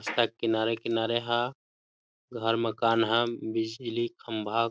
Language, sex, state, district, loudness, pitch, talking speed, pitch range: Hindi, male, Chhattisgarh, Balrampur, -29 LUFS, 115 Hz, 115 wpm, 115-120 Hz